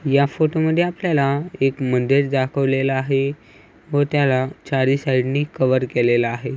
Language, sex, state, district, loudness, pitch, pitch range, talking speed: Marathi, male, Maharashtra, Aurangabad, -19 LUFS, 135 Hz, 130-145 Hz, 135 wpm